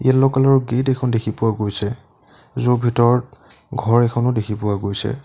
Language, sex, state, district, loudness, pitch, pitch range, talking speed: Assamese, male, Assam, Sonitpur, -19 LUFS, 120 Hz, 105-130 Hz, 150 wpm